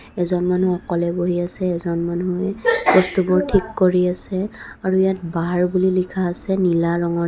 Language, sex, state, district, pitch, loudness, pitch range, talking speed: Assamese, female, Assam, Kamrup Metropolitan, 180 Hz, -20 LUFS, 175-190 Hz, 155 wpm